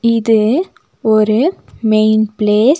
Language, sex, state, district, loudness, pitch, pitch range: Tamil, female, Tamil Nadu, Nilgiris, -13 LUFS, 220 Hz, 215-230 Hz